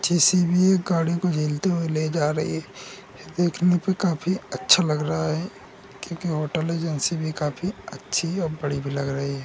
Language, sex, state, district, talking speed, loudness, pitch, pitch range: Hindi, male, Uttar Pradesh, Hamirpur, 195 wpm, -23 LUFS, 165 Hz, 150-180 Hz